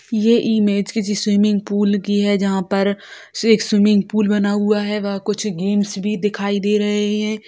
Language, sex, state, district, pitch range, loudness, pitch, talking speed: Hindi, female, Bihar, Sitamarhi, 200-210 Hz, -18 LUFS, 205 Hz, 185 wpm